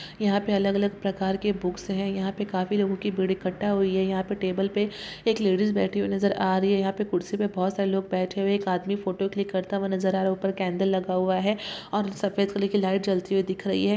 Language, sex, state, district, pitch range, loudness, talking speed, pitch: Hindi, female, Andhra Pradesh, Guntur, 190-200 Hz, -26 LUFS, 275 wpm, 195 Hz